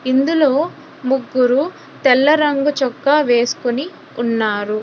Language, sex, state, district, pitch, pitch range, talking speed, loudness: Telugu, female, Telangana, Hyderabad, 265 Hz, 245-295 Hz, 85 wpm, -16 LUFS